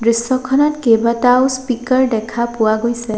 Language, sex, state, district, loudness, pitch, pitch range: Assamese, female, Assam, Sonitpur, -15 LUFS, 235 Hz, 230-255 Hz